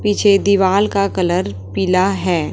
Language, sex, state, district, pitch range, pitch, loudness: Hindi, male, Chhattisgarh, Raipur, 180-200 Hz, 190 Hz, -16 LUFS